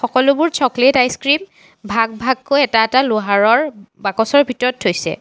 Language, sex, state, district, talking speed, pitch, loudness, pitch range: Assamese, female, Assam, Sonitpur, 125 wpm, 250 Hz, -15 LUFS, 220-275 Hz